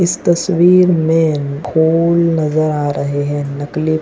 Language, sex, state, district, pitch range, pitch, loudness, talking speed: Hindi, male, Goa, North and South Goa, 145-170 Hz, 160 Hz, -14 LUFS, 135 wpm